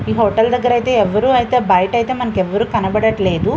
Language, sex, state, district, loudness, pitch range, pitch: Telugu, female, Andhra Pradesh, Visakhapatnam, -15 LUFS, 195-245 Hz, 220 Hz